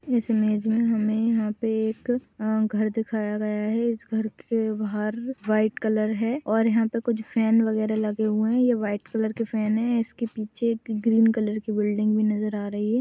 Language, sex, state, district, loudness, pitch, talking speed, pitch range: Hindi, female, Uttar Pradesh, Jyotiba Phule Nagar, -25 LUFS, 220 Hz, 205 wpm, 215-225 Hz